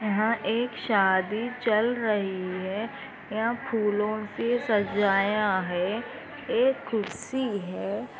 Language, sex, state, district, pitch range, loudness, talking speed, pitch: Hindi, female, Andhra Pradesh, Anantapur, 200-235 Hz, -27 LUFS, 95 wpm, 215 Hz